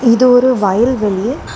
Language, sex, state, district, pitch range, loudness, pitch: Tamil, female, Tamil Nadu, Kanyakumari, 210-255 Hz, -12 LUFS, 240 Hz